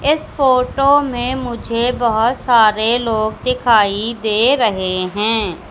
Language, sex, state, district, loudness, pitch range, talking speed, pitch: Hindi, female, Madhya Pradesh, Katni, -15 LUFS, 220-250 Hz, 115 wpm, 235 Hz